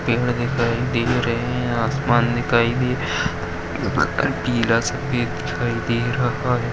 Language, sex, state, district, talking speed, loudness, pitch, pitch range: Hindi, male, Maharashtra, Nagpur, 135 wpm, -21 LUFS, 120 Hz, 115-125 Hz